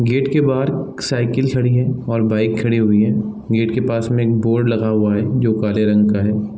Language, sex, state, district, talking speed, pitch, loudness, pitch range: Hindi, male, Bihar, East Champaran, 230 wpm, 115 Hz, -17 LUFS, 105-125 Hz